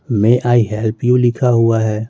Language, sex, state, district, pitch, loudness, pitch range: Hindi, male, Bihar, West Champaran, 115 Hz, -14 LUFS, 110-120 Hz